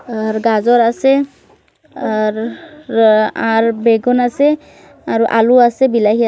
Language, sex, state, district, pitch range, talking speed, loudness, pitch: Bengali, female, West Bengal, Kolkata, 225-250 Hz, 115 wpm, -14 LUFS, 230 Hz